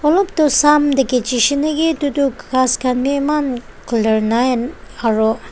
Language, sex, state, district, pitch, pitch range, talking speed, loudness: Nagamese, female, Nagaland, Dimapur, 265 Hz, 245-295 Hz, 175 wpm, -16 LUFS